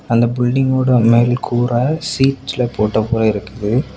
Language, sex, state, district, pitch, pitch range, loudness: Tamil, male, Tamil Nadu, Kanyakumari, 120 Hz, 115-130 Hz, -16 LUFS